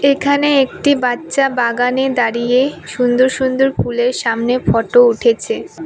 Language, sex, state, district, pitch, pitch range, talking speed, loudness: Bengali, female, West Bengal, Cooch Behar, 255 Hz, 240-275 Hz, 115 wpm, -15 LUFS